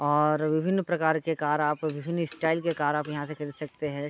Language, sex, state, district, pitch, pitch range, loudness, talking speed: Hindi, male, Uttar Pradesh, Jalaun, 150 Hz, 150-160 Hz, -28 LUFS, 235 wpm